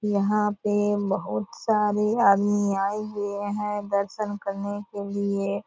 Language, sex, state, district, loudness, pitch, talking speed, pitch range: Hindi, female, Bihar, Purnia, -25 LUFS, 205 Hz, 125 wpm, 200-210 Hz